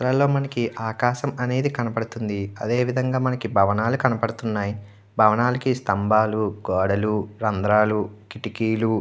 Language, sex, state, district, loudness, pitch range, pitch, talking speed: Telugu, male, Andhra Pradesh, Chittoor, -23 LUFS, 105-125 Hz, 110 Hz, 85 wpm